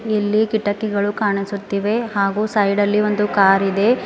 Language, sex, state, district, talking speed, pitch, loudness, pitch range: Kannada, female, Karnataka, Bidar, 105 wpm, 205 Hz, -18 LUFS, 200-215 Hz